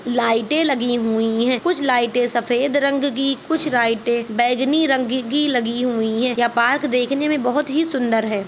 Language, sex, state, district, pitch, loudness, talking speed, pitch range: Hindi, female, Jharkhand, Jamtara, 250 Hz, -19 LUFS, 175 wpm, 235-280 Hz